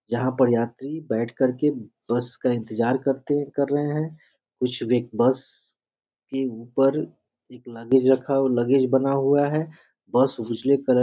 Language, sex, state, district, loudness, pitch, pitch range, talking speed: Hindi, male, Bihar, Muzaffarpur, -23 LUFS, 130 Hz, 120-140 Hz, 140 wpm